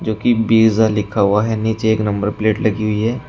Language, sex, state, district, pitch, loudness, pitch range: Hindi, male, Uttar Pradesh, Shamli, 110 Hz, -16 LUFS, 105-110 Hz